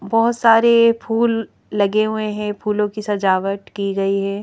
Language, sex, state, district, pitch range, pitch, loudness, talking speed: Hindi, female, Madhya Pradesh, Bhopal, 200-225 Hz, 210 Hz, -18 LUFS, 165 wpm